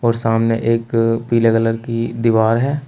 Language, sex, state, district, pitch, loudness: Hindi, male, Uttar Pradesh, Shamli, 115 Hz, -17 LUFS